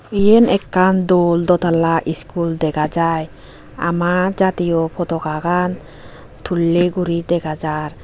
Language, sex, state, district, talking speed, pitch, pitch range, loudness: Chakma, female, Tripura, Unakoti, 105 wpm, 170 Hz, 165-180 Hz, -17 LUFS